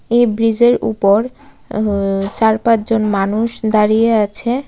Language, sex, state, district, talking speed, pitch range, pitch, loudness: Bengali, female, Tripura, West Tripura, 140 wpm, 210-235 Hz, 220 Hz, -15 LUFS